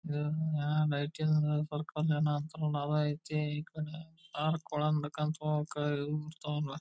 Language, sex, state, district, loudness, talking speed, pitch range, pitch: Kannada, male, Karnataka, Belgaum, -34 LUFS, 55 wpm, 150-155 Hz, 150 Hz